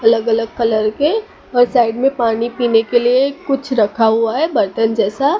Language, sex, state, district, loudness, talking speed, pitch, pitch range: Hindi, male, Gujarat, Gandhinagar, -15 LUFS, 190 wpm, 240 Hz, 225-270 Hz